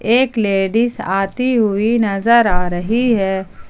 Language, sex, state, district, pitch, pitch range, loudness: Hindi, male, Jharkhand, Ranchi, 220 Hz, 195-235 Hz, -16 LUFS